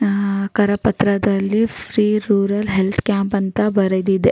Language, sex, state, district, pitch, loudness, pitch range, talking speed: Kannada, female, Karnataka, Raichur, 200 Hz, -18 LUFS, 195-210 Hz, 125 wpm